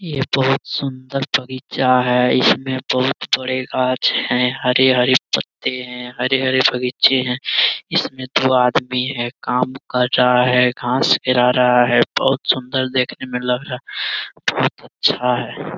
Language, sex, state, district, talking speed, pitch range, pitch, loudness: Hindi, male, Bihar, Jamui, 120 wpm, 125-130 Hz, 130 Hz, -17 LUFS